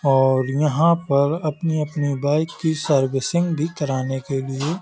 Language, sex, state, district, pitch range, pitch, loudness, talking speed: Hindi, male, Uttar Pradesh, Hamirpur, 135-160 Hz, 145 Hz, -21 LUFS, 150 wpm